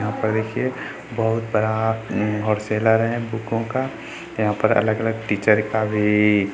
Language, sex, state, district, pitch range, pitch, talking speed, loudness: Hindi, male, Bihar, Samastipur, 105-115 Hz, 110 Hz, 155 wpm, -21 LUFS